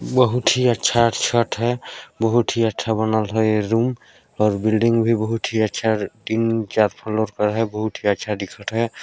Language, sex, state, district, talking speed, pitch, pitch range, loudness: Hindi, male, Chhattisgarh, Balrampur, 185 wpm, 110 Hz, 110-115 Hz, -20 LUFS